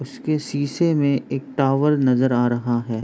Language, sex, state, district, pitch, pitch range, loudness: Hindi, male, Bihar, Begusarai, 135 Hz, 120-145 Hz, -20 LUFS